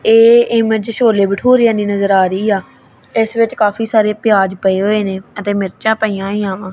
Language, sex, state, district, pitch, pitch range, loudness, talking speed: Punjabi, female, Punjab, Kapurthala, 210 Hz, 195-225 Hz, -14 LUFS, 195 wpm